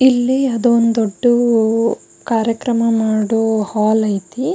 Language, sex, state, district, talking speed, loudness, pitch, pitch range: Kannada, female, Karnataka, Belgaum, 105 wpm, -16 LUFS, 230 Hz, 220-240 Hz